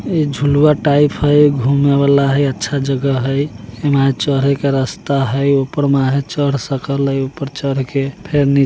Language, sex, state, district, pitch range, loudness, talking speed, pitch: Bajjika, male, Bihar, Vaishali, 135-145 Hz, -15 LUFS, 160 wpm, 140 Hz